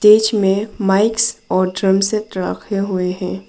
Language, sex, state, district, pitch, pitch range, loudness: Hindi, female, Arunachal Pradesh, Papum Pare, 195 Hz, 190-210 Hz, -17 LUFS